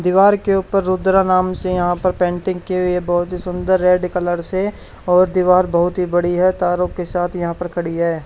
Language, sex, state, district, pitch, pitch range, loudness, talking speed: Hindi, male, Haryana, Charkhi Dadri, 180 Hz, 175-185 Hz, -17 LUFS, 225 wpm